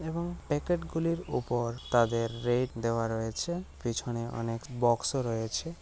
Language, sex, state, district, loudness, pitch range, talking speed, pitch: Bengali, female, West Bengal, Malda, -31 LUFS, 115-165 Hz, 135 wpm, 120 Hz